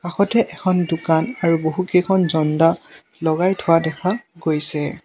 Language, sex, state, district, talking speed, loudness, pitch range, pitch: Assamese, male, Assam, Sonitpur, 120 wpm, -19 LUFS, 160-185 Hz, 165 Hz